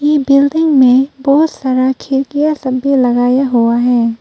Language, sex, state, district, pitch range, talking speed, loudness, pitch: Hindi, female, Arunachal Pradesh, Papum Pare, 250-285 Hz, 130 wpm, -12 LUFS, 265 Hz